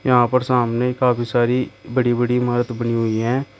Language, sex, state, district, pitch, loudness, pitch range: Hindi, male, Uttar Pradesh, Shamli, 120 Hz, -19 LUFS, 120-125 Hz